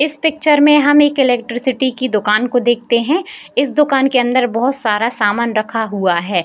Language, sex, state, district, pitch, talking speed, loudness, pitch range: Hindi, female, Bihar, Jamui, 250 Hz, 195 wpm, -14 LUFS, 230-290 Hz